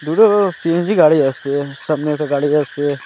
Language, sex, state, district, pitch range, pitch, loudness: Bengali, male, Assam, Hailakandi, 145-165 Hz, 150 Hz, -16 LUFS